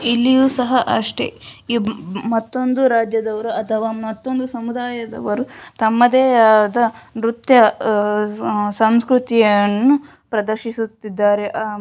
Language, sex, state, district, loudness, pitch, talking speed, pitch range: Kannada, female, Karnataka, Shimoga, -17 LUFS, 225 Hz, 85 wpm, 215-245 Hz